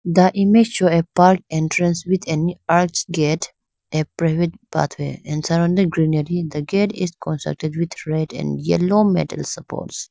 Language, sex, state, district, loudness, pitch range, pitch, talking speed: English, female, Arunachal Pradesh, Lower Dibang Valley, -19 LUFS, 155-185 Hz, 170 Hz, 155 wpm